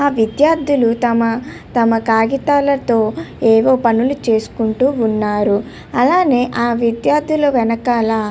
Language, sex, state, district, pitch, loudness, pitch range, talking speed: Telugu, female, Andhra Pradesh, Krishna, 235 Hz, -15 LUFS, 225-270 Hz, 100 wpm